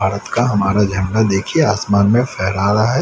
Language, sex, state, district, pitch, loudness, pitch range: Hindi, male, Haryana, Rohtak, 100 Hz, -16 LUFS, 100-110 Hz